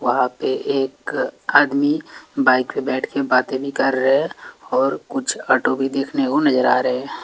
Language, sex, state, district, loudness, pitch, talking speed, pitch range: Hindi, male, Bihar, Patna, -19 LUFS, 135 Hz, 190 wpm, 130-145 Hz